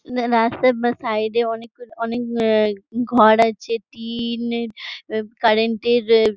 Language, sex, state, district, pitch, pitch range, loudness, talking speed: Bengali, female, West Bengal, Jhargram, 230 Hz, 220-240 Hz, -19 LUFS, 130 wpm